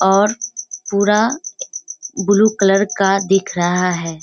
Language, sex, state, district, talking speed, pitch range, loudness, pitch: Hindi, female, Bihar, Kishanganj, 115 wpm, 195-220 Hz, -16 LUFS, 200 Hz